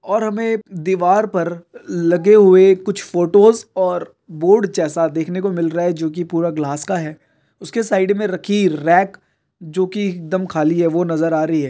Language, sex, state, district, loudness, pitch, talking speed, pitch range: Hindi, male, Bihar, Kishanganj, -16 LUFS, 180 Hz, 185 wpm, 165-200 Hz